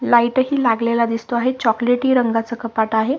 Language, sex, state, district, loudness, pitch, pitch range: Marathi, female, Maharashtra, Solapur, -18 LUFS, 235 Hz, 230-255 Hz